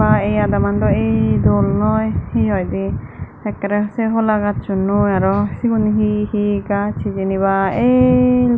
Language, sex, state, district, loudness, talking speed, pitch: Chakma, female, Tripura, Dhalai, -17 LUFS, 145 wpm, 195 Hz